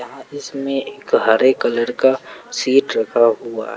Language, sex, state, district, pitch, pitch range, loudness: Hindi, male, Jharkhand, Palamu, 130 Hz, 115-135 Hz, -17 LUFS